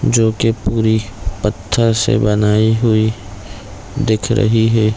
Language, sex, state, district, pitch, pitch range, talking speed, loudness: Hindi, male, Chhattisgarh, Bilaspur, 110 Hz, 105-115 Hz, 120 wpm, -15 LUFS